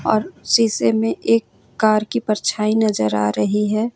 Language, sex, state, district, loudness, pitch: Hindi, female, Jharkhand, Ranchi, -18 LUFS, 210 Hz